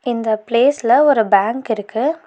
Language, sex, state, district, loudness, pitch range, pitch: Tamil, female, Tamil Nadu, Nilgiris, -16 LUFS, 220-265 Hz, 235 Hz